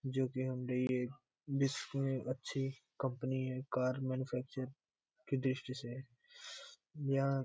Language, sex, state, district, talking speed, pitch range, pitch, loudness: Hindi, male, Bihar, Gopalganj, 90 wpm, 125-135 Hz, 130 Hz, -39 LUFS